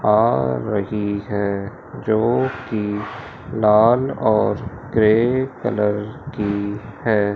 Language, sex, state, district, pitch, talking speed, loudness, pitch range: Hindi, male, Madhya Pradesh, Umaria, 105 Hz, 90 wpm, -20 LUFS, 105-120 Hz